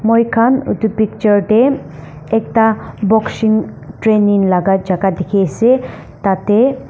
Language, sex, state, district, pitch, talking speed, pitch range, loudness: Nagamese, female, Nagaland, Dimapur, 215 Hz, 115 wpm, 195-225 Hz, -14 LUFS